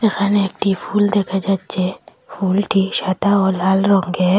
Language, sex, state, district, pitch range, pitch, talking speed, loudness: Bengali, female, Assam, Hailakandi, 190-205 Hz, 195 Hz, 135 wpm, -17 LUFS